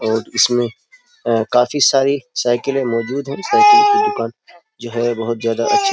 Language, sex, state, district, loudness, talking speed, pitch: Hindi, male, Uttar Pradesh, Jyotiba Phule Nagar, -16 LUFS, 170 wpm, 125 Hz